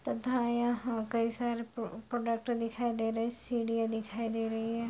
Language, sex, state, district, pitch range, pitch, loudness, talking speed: Hindi, female, Bihar, Bhagalpur, 225-240 Hz, 230 Hz, -34 LUFS, 170 wpm